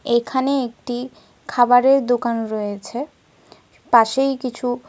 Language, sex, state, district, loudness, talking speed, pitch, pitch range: Bengali, female, Jharkhand, Sahebganj, -19 LUFS, 100 wpm, 245 Hz, 235-265 Hz